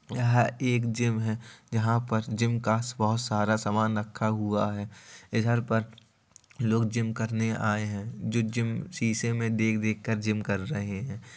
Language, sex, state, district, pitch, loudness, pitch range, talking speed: Hindi, male, Uttar Pradesh, Jalaun, 110 Hz, -28 LUFS, 110-115 Hz, 170 wpm